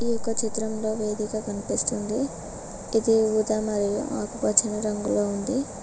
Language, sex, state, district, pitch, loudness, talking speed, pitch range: Telugu, female, Telangana, Mahabubabad, 215 Hz, -25 LUFS, 115 wpm, 210-225 Hz